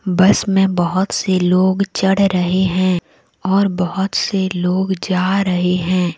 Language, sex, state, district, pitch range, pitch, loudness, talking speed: Hindi, female, Jharkhand, Deoghar, 180-195 Hz, 185 Hz, -16 LUFS, 145 wpm